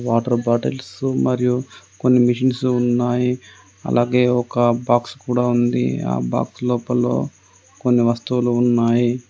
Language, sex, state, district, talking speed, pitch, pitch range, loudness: Telugu, male, Telangana, Adilabad, 110 wpm, 120 Hz, 120-125 Hz, -19 LUFS